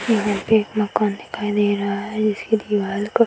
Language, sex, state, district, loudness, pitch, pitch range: Hindi, female, Bihar, Saran, -21 LUFS, 210 Hz, 205-215 Hz